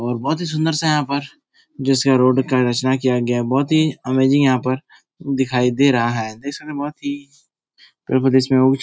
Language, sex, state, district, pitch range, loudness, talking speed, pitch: Hindi, male, Bihar, Jahanabad, 130-145 Hz, -18 LUFS, 210 wpm, 135 Hz